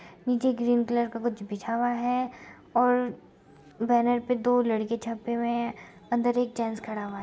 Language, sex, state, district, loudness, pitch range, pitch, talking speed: Hindi, female, Uttar Pradesh, Muzaffarnagar, -27 LUFS, 230-245 Hz, 240 Hz, 185 wpm